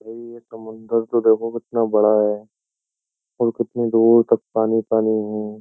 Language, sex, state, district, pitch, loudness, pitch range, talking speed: Hindi, male, Uttar Pradesh, Jyotiba Phule Nagar, 110 Hz, -19 LUFS, 110-115 Hz, 140 wpm